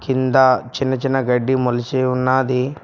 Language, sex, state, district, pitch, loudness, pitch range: Telugu, male, Telangana, Mahabubabad, 130 Hz, -18 LUFS, 125-130 Hz